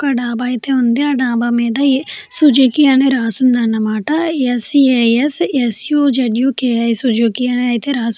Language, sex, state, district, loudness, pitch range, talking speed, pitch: Telugu, female, Andhra Pradesh, Chittoor, -14 LUFS, 235-275 Hz, 185 wpm, 250 Hz